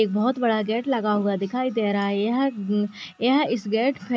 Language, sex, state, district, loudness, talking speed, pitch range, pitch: Hindi, female, Chhattisgarh, Raigarh, -23 LUFS, 230 wpm, 205-250 Hz, 220 Hz